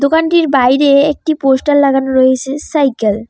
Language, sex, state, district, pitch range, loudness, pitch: Bengali, female, West Bengal, Cooch Behar, 260-295 Hz, -12 LUFS, 275 Hz